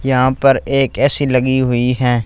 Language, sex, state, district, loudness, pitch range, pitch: Hindi, male, Punjab, Fazilka, -14 LUFS, 125-135 Hz, 130 Hz